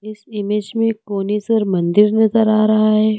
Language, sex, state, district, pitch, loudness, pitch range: Hindi, female, Uttar Pradesh, Lucknow, 215 Hz, -16 LUFS, 210-220 Hz